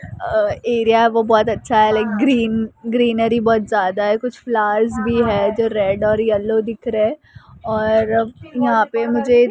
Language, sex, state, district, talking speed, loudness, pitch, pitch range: Hindi, female, Maharashtra, Mumbai Suburban, 170 wpm, -17 LUFS, 225 Hz, 215-235 Hz